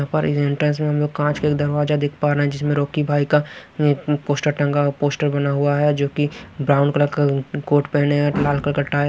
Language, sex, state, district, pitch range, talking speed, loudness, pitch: Hindi, male, Bihar, Kaimur, 145-150 Hz, 245 wpm, -19 LUFS, 145 Hz